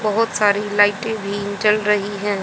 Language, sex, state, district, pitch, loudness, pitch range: Hindi, female, Haryana, Jhajjar, 205 Hz, -18 LUFS, 205-210 Hz